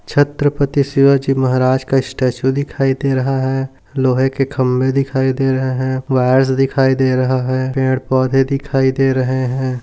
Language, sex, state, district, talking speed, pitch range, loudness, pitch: Hindi, male, Maharashtra, Dhule, 165 wpm, 130-135 Hz, -16 LUFS, 130 Hz